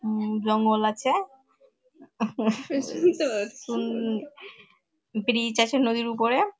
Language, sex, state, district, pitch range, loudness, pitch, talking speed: Bengali, female, West Bengal, Malda, 220-275 Hz, -26 LUFS, 230 Hz, 75 wpm